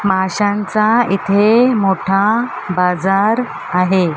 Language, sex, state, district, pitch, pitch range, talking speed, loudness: Marathi, male, Maharashtra, Mumbai Suburban, 200 Hz, 190-215 Hz, 70 wpm, -15 LUFS